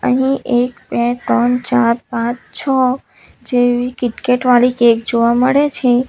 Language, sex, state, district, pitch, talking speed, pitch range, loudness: Gujarati, female, Gujarat, Valsad, 245 Hz, 140 wpm, 240-255 Hz, -15 LUFS